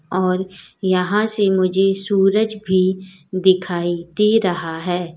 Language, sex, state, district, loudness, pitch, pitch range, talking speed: Hindi, female, Uttar Pradesh, Lalitpur, -18 LUFS, 185 Hz, 180-195 Hz, 115 wpm